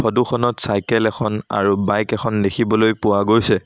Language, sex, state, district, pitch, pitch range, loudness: Assamese, male, Assam, Sonitpur, 110 Hz, 105-115 Hz, -18 LUFS